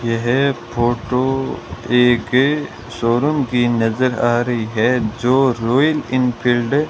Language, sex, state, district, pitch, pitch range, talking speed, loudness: Hindi, male, Rajasthan, Bikaner, 120 Hz, 120-130 Hz, 115 wpm, -17 LUFS